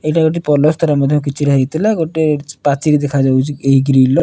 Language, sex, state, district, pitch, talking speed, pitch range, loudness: Odia, male, Odisha, Nuapada, 145 Hz, 155 wpm, 135-155 Hz, -14 LUFS